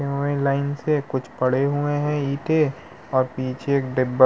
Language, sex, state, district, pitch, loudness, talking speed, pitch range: Hindi, male, Uttar Pradesh, Muzaffarnagar, 140 Hz, -23 LUFS, 195 wpm, 130-145 Hz